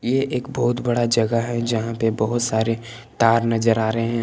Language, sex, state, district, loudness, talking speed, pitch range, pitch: Hindi, male, Jharkhand, Palamu, -21 LUFS, 210 wpm, 115-120 Hz, 115 Hz